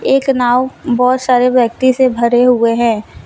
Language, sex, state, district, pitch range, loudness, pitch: Hindi, female, Jharkhand, Deoghar, 235-255 Hz, -12 LUFS, 250 Hz